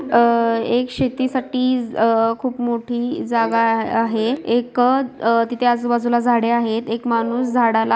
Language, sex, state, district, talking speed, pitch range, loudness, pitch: Marathi, female, Maharashtra, Aurangabad, 135 wpm, 230-250 Hz, -19 LUFS, 240 Hz